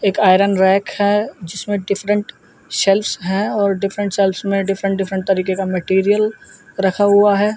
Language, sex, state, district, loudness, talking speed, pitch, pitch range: Hindi, male, Uttar Pradesh, Jyotiba Phule Nagar, -17 LUFS, 160 wpm, 195 Hz, 190-205 Hz